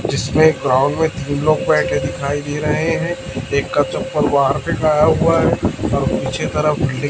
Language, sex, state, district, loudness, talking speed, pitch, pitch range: Hindi, male, Chhattisgarh, Raipur, -17 LUFS, 175 wpm, 145 Hz, 135-155 Hz